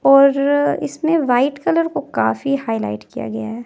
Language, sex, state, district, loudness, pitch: Hindi, female, Himachal Pradesh, Shimla, -18 LUFS, 275 Hz